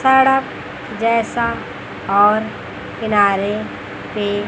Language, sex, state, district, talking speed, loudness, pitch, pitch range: Hindi, female, Chandigarh, Chandigarh, 65 wpm, -17 LUFS, 215 Hz, 205-235 Hz